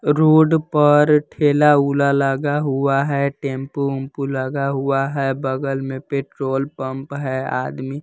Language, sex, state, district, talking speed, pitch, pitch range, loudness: Hindi, female, Bihar, West Champaran, 125 wpm, 140 Hz, 135-145 Hz, -19 LUFS